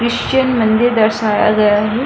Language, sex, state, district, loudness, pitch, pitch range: Hindi, female, Bihar, Kishanganj, -13 LUFS, 220 Hz, 215-240 Hz